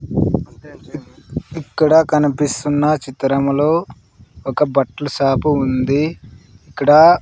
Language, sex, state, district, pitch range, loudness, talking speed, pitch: Telugu, male, Andhra Pradesh, Sri Satya Sai, 135-150 Hz, -16 LUFS, 65 wpm, 145 Hz